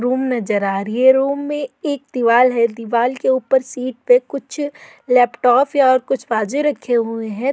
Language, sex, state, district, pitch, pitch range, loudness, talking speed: Hindi, female, Uttar Pradesh, Etah, 255 Hz, 235-275 Hz, -17 LUFS, 190 wpm